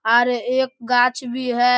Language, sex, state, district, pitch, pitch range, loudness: Maithili, male, Bihar, Darbhanga, 245 Hz, 245-250 Hz, -19 LUFS